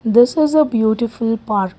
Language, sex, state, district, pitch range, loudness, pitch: English, female, Karnataka, Bangalore, 220-245 Hz, -16 LUFS, 230 Hz